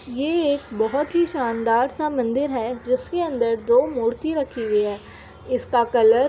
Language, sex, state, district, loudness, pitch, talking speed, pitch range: Hindi, female, Uttar Pradesh, Jyotiba Phule Nagar, -22 LUFS, 250 Hz, 170 wpm, 230-285 Hz